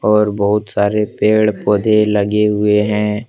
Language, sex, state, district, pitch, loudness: Hindi, male, Jharkhand, Deoghar, 105 Hz, -14 LUFS